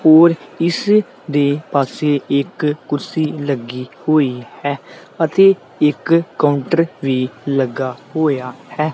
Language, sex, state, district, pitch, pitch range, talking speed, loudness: Punjabi, male, Punjab, Kapurthala, 150 Hz, 140-165 Hz, 105 wpm, -17 LUFS